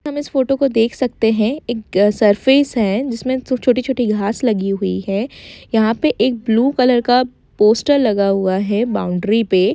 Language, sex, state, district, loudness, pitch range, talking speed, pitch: Hindi, female, Jharkhand, Jamtara, -16 LUFS, 205-255 Hz, 180 wpm, 230 Hz